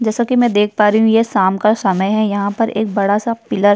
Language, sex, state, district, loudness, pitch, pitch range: Hindi, female, Uttar Pradesh, Jyotiba Phule Nagar, -15 LUFS, 215 Hz, 205-225 Hz